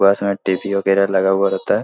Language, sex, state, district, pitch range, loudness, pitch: Hindi, male, Bihar, Supaul, 95-100 Hz, -17 LUFS, 100 Hz